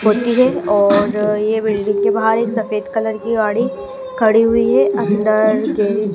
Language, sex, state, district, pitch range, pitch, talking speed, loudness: Hindi, female, Madhya Pradesh, Dhar, 205-225 Hz, 215 Hz, 175 wpm, -15 LUFS